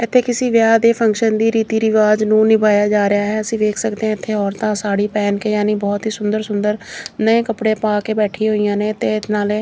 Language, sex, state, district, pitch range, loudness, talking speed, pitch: Punjabi, female, Chandigarh, Chandigarh, 210-220 Hz, -16 LUFS, 225 wpm, 215 Hz